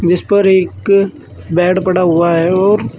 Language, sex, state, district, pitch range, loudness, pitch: Hindi, male, Uttar Pradesh, Saharanpur, 175-195 Hz, -12 LUFS, 185 Hz